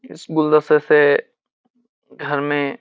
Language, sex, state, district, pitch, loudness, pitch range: Hindi, male, Uttarakhand, Uttarkashi, 150 Hz, -17 LUFS, 145-160 Hz